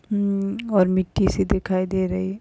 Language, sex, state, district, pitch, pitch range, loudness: Hindi, female, Maharashtra, Sindhudurg, 190 Hz, 185-200 Hz, -22 LUFS